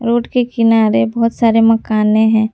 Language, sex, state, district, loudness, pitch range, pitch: Hindi, female, Jharkhand, Garhwa, -13 LUFS, 220-230 Hz, 225 Hz